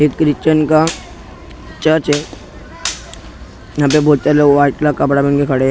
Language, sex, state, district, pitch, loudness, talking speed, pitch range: Hindi, male, Maharashtra, Mumbai Suburban, 140 Hz, -14 LUFS, 180 wpm, 95-150 Hz